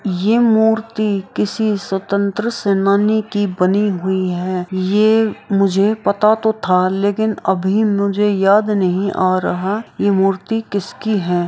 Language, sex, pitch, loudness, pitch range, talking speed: Maithili, female, 200 Hz, -16 LUFS, 190-215 Hz, 130 wpm